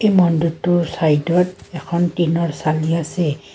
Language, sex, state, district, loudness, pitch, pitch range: Assamese, female, Assam, Kamrup Metropolitan, -18 LUFS, 170 Hz, 160-175 Hz